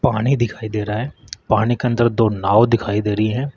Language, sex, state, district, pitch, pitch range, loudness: Hindi, male, Rajasthan, Jaipur, 110 Hz, 105-120 Hz, -18 LUFS